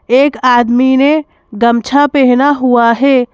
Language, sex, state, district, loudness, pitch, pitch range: Hindi, female, Madhya Pradesh, Bhopal, -10 LUFS, 255 Hz, 240-280 Hz